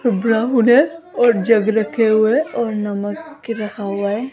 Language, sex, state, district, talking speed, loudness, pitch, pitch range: Hindi, female, Rajasthan, Jaipur, 155 wpm, -17 LUFS, 225 Hz, 210-240 Hz